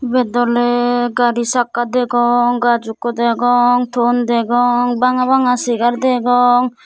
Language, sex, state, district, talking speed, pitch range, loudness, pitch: Chakma, female, Tripura, Dhalai, 120 wpm, 240-245 Hz, -15 LUFS, 245 Hz